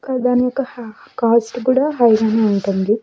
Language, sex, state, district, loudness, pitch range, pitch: Telugu, female, Andhra Pradesh, Sri Satya Sai, -16 LUFS, 220-255 Hz, 235 Hz